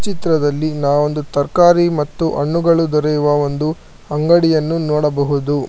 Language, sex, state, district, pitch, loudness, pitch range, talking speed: Kannada, male, Karnataka, Bangalore, 150 Hz, -16 LUFS, 145-165 Hz, 95 wpm